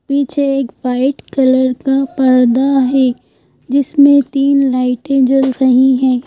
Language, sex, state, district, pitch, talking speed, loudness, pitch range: Hindi, female, Madhya Pradesh, Bhopal, 265 Hz, 125 wpm, -12 LUFS, 255-275 Hz